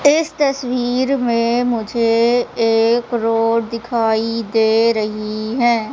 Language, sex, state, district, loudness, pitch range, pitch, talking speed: Hindi, female, Madhya Pradesh, Katni, -17 LUFS, 225-245 Hz, 230 Hz, 100 wpm